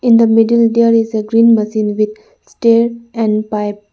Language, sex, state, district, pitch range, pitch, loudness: English, female, Arunachal Pradesh, Lower Dibang Valley, 215-235 Hz, 230 Hz, -13 LUFS